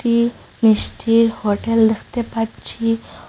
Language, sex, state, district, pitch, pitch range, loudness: Bengali, female, Assam, Hailakandi, 230 Hz, 220-235 Hz, -17 LUFS